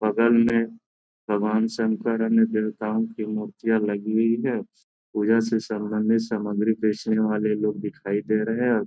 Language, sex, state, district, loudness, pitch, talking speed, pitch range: Hindi, male, Bihar, Gopalganj, -24 LUFS, 110 Hz, 150 wpm, 105-115 Hz